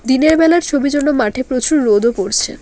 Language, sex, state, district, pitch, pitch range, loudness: Bengali, female, West Bengal, Alipurduar, 265 Hz, 235-300 Hz, -14 LUFS